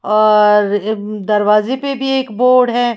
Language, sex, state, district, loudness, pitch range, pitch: Hindi, female, Haryana, Jhajjar, -14 LUFS, 210-250 Hz, 215 Hz